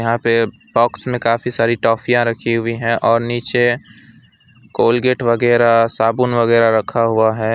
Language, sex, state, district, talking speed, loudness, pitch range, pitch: Hindi, male, West Bengal, Alipurduar, 150 wpm, -15 LUFS, 115-120 Hz, 115 Hz